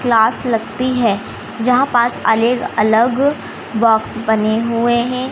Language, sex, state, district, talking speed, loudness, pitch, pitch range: Hindi, female, Madhya Pradesh, Umaria, 125 wpm, -15 LUFS, 235 Hz, 225-250 Hz